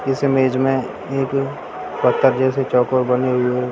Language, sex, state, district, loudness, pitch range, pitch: Hindi, male, Bihar, Sitamarhi, -18 LUFS, 125-135 Hz, 130 Hz